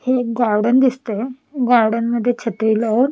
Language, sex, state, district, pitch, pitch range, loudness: Marathi, female, Maharashtra, Washim, 240 Hz, 225-255 Hz, -18 LUFS